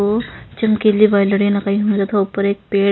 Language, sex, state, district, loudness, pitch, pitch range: Hindi, male, Punjab, Pathankot, -16 LUFS, 200 Hz, 200-210 Hz